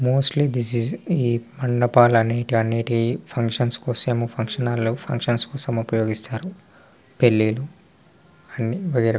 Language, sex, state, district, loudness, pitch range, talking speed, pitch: Telugu, male, Telangana, Nalgonda, -21 LUFS, 115-135 Hz, 85 wpm, 120 Hz